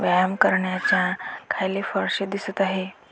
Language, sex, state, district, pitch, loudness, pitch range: Marathi, female, Maharashtra, Dhule, 190 Hz, -23 LUFS, 185-195 Hz